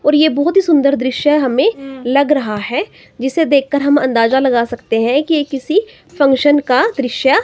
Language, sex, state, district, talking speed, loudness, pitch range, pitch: Hindi, female, Himachal Pradesh, Shimla, 195 wpm, -14 LUFS, 255-295 Hz, 275 Hz